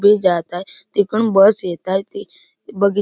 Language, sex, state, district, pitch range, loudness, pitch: Marathi, male, Maharashtra, Chandrapur, 185-205 Hz, -16 LUFS, 200 Hz